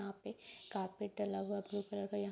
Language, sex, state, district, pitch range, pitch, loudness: Hindi, female, Bihar, Sitamarhi, 200-205 Hz, 200 Hz, -43 LUFS